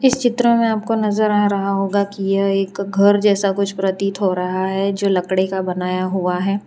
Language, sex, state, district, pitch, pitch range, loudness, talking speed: Hindi, female, Gujarat, Valsad, 195 Hz, 190-205 Hz, -18 LUFS, 215 wpm